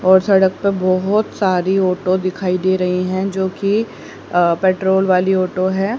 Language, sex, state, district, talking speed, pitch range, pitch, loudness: Hindi, female, Haryana, Rohtak, 170 wpm, 185-190 Hz, 185 Hz, -16 LUFS